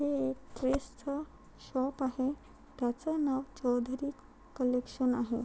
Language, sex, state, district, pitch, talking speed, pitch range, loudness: Marathi, female, Maharashtra, Chandrapur, 265 Hz, 120 wpm, 250-280 Hz, -34 LUFS